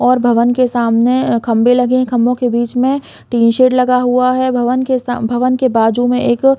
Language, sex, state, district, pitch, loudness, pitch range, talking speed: Hindi, female, Chhattisgarh, Bilaspur, 250 Hz, -13 LUFS, 240-255 Hz, 230 wpm